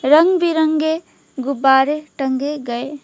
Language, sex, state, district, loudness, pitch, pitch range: Hindi, female, West Bengal, Alipurduar, -17 LUFS, 295 Hz, 270-315 Hz